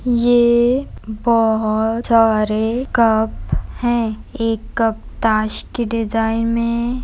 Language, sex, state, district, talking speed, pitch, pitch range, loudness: Hindi, female, Bihar, Jamui, 95 wpm, 230 Hz, 220-235 Hz, -17 LUFS